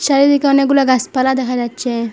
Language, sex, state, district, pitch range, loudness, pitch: Bengali, female, Assam, Hailakandi, 250-275 Hz, -14 LUFS, 260 Hz